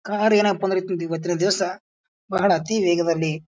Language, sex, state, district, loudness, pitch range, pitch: Kannada, male, Karnataka, Bijapur, -21 LUFS, 170-210 Hz, 185 Hz